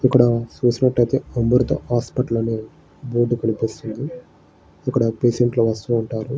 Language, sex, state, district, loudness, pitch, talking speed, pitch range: Telugu, male, Andhra Pradesh, Srikakulam, -20 LUFS, 120 Hz, 95 wpm, 115-125 Hz